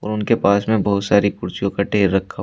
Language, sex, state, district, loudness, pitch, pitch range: Hindi, male, Uttar Pradesh, Shamli, -18 LUFS, 100 Hz, 100-105 Hz